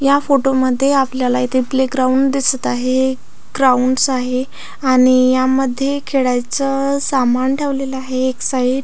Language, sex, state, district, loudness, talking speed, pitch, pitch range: Marathi, female, Maharashtra, Aurangabad, -16 LUFS, 135 wpm, 260 Hz, 255-275 Hz